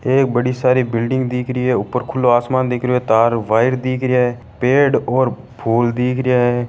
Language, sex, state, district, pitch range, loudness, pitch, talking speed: Marwari, male, Rajasthan, Churu, 120-130 Hz, -17 LUFS, 125 Hz, 225 wpm